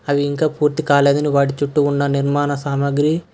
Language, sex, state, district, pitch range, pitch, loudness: Telugu, male, Karnataka, Bangalore, 140-150 Hz, 145 Hz, -17 LUFS